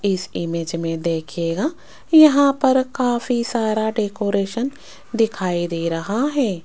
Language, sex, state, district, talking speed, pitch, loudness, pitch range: Hindi, female, Rajasthan, Jaipur, 115 wpm, 215 Hz, -20 LUFS, 175-260 Hz